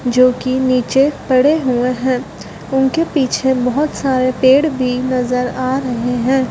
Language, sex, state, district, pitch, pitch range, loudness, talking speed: Hindi, female, Madhya Pradesh, Dhar, 255 Hz, 250-270 Hz, -15 LUFS, 145 wpm